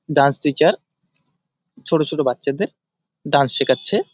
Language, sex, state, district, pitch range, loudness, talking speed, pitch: Bengali, male, West Bengal, Jalpaiguri, 140-170 Hz, -19 LUFS, 100 wpm, 160 Hz